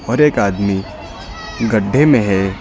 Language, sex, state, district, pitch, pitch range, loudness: Hindi, male, Uttar Pradesh, Lucknow, 105 Hz, 100-125 Hz, -15 LUFS